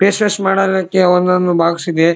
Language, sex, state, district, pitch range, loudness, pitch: Kannada, male, Karnataka, Dharwad, 170-195 Hz, -14 LUFS, 180 Hz